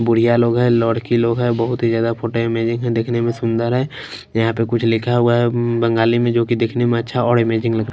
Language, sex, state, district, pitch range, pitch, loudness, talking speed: Hindi, male, Punjab, Kapurthala, 115-120 Hz, 115 Hz, -17 LUFS, 235 wpm